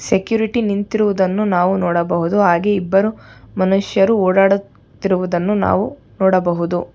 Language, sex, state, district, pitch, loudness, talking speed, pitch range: Kannada, female, Karnataka, Bangalore, 195 Hz, -16 LUFS, 85 wpm, 180-205 Hz